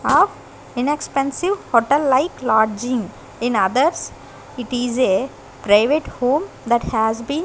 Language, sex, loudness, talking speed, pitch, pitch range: English, female, -19 LUFS, 130 wpm, 250 Hz, 230-280 Hz